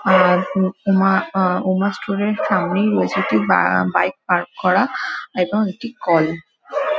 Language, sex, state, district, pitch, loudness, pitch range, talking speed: Bengali, female, West Bengal, Dakshin Dinajpur, 190 Hz, -18 LUFS, 180-205 Hz, 145 wpm